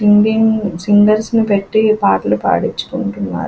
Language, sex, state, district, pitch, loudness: Telugu, female, Andhra Pradesh, Krishna, 205 Hz, -14 LUFS